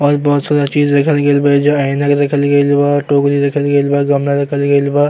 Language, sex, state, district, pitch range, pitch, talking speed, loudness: Bhojpuri, male, Uttar Pradesh, Gorakhpur, 140-145 Hz, 145 Hz, 235 wpm, -13 LUFS